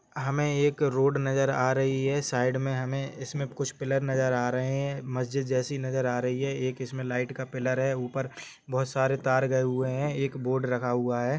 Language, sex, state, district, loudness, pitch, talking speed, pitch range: Hindi, male, Jharkhand, Sahebganj, -28 LUFS, 130 Hz, 215 wpm, 130-135 Hz